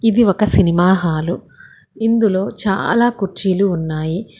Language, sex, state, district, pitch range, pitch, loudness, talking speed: Telugu, female, Telangana, Hyderabad, 175-225 Hz, 195 Hz, -16 LUFS, 110 wpm